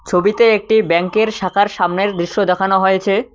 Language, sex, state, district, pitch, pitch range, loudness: Bengali, male, West Bengal, Cooch Behar, 200 Hz, 185-215 Hz, -15 LUFS